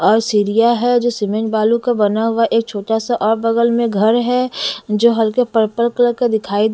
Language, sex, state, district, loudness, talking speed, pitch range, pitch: Hindi, female, Bihar, West Champaran, -16 LUFS, 215 wpm, 215-240 Hz, 230 Hz